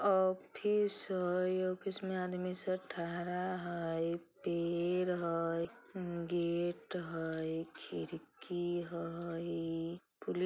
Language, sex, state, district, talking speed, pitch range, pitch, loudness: Bajjika, female, Bihar, Vaishali, 80 wpm, 170-185 Hz, 175 Hz, -38 LUFS